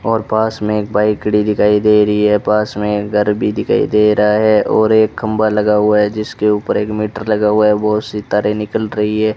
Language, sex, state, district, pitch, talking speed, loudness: Hindi, male, Rajasthan, Bikaner, 105 Hz, 235 wpm, -14 LUFS